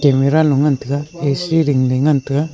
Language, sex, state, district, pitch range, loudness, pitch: Wancho, male, Arunachal Pradesh, Longding, 135-150 Hz, -16 LUFS, 145 Hz